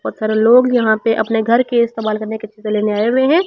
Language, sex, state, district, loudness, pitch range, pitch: Hindi, female, Delhi, New Delhi, -15 LUFS, 215-240 Hz, 225 Hz